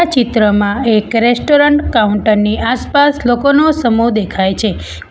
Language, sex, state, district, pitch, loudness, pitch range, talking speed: Gujarati, female, Gujarat, Valsad, 230 Hz, -12 LUFS, 210-280 Hz, 105 wpm